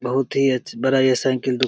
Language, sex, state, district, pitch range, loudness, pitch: Maithili, male, Bihar, Begusarai, 125-135 Hz, -20 LUFS, 130 Hz